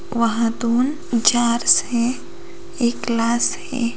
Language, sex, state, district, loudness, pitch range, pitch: Hindi, female, Bihar, Gopalganj, -19 LUFS, 235-275 Hz, 235 Hz